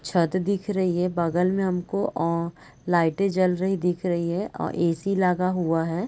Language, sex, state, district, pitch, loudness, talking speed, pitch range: Hindi, female, Bihar, Sitamarhi, 180 Hz, -24 LUFS, 195 wpm, 170-190 Hz